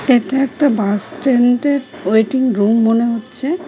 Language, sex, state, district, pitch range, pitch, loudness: Bengali, female, West Bengal, Cooch Behar, 225-275 Hz, 250 Hz, -15 LUFS